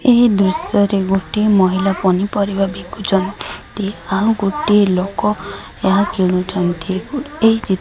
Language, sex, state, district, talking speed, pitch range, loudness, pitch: Odia, female, Odisha, Sambalpur, 115 wpm, 190-210 Hz, -16 LUFS, 200 Hz